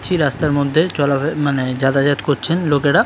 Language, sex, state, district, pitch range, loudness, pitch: Bengali, male, West Bengal, Kolkata, 140-160 Hz, -17 LUFS, 145 Hz